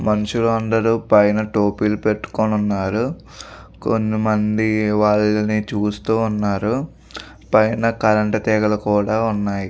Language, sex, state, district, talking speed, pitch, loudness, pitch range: Telugu, male, Andhra Pradesh, Visakhapatnam, 100 wpm, 105 Hz, -19 LUFS, 105-110 Hz